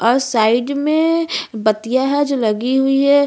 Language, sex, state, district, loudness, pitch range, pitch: Hindi, female, Chhattisgarh, Bastar, -16 LUFS, 230-285 Hz, 265 Hz